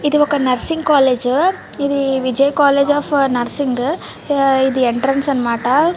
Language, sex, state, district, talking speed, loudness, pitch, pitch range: Telugu, female, Andhra Pradesh, Srikakulam, 130 wpm, -15 LUFS, 275 Hz, 260-290 Hz